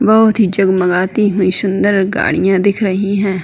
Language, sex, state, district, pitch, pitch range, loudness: Hindi, female, Uttarakhand, Tehri Garhwal, 195 Hz, 190-210 Hz, -13 LUFS